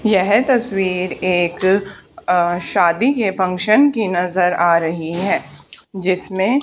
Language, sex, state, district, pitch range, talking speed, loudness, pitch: Hindi, female, Haryana, Charkhi Dadri, 180-210 Hz, 120 wpm, -17 LUFS, 185 Hz